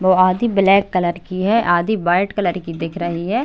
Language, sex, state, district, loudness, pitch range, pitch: Hindi, female, Chhattisgarh, Bilaspur, -17 LUFS, 175-200 Hz, 185 Hz